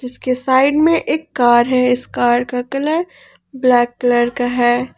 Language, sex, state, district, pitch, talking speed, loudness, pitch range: Hindi, female, Jharkhand, Ranchi, 250 Hz, 170 wpm, -15 LUFS, 245-265 Hz